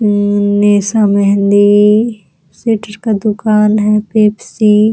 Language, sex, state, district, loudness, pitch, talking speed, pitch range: Hindi, female, Bihar, Araria, -11 LUFS, 210 Hz, 110 wpm, 205-215 Hz